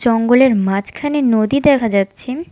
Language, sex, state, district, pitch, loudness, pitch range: Bengali, female, West Bengal, Alipurduar, 240 Hz, -15 LUFS, 215-275 Hz